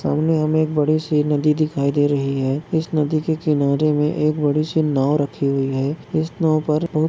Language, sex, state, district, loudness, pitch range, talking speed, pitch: Hindi, male, Maharashtra, Nagpur, -19 LUFS, 145-155 Hz, 220 wpm, 150 Hz